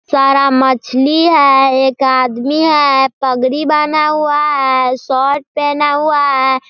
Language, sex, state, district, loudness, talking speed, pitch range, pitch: Hindi, female, Bihar, Sitamarhi, -12 LUFS, 125 wpm, 265-295 Hz, 275 Hz